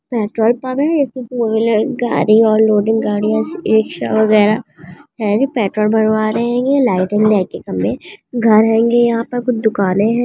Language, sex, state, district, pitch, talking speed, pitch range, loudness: Hindi, female, Bihar, Jamui, 225 Hz, 175 wpm, 215-245 Hz, -15 LUFS